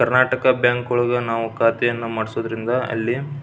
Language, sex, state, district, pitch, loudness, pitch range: Kannada, male, Karnataka, Belgaum, 120 Hz, -20 LUFS, 115-125 Hz